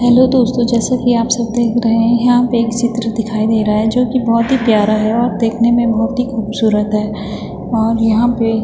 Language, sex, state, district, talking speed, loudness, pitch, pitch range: Hindi, female, Uttarakhand, Tehri Garhwal, 235 wpm, -14 LUFS, 230 Hz, 220-240 Hz